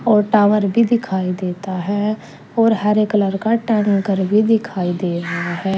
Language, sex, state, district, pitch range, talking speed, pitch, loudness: Hindi, female, Uttar Pradesh, Saharanpur, 190-215 Hz, 165 wpm, 205 Hz, -17 LUFS